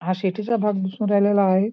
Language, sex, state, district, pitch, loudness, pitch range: Marathi, male, Maharashtra, Nagpur, 205 Hz, -21 LUFS, 190-210 Hz